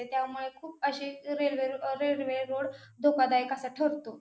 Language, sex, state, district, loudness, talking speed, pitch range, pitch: Marathi, female, Maharashtra, Pune, -31 LUFS, 140 wpm, 265-285 Hz, 270 Hz